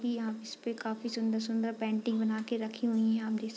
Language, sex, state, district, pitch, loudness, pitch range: Hindi, female, Bihar, Madhepura, 225 Hz, -33 LUFS, 220-230 Hz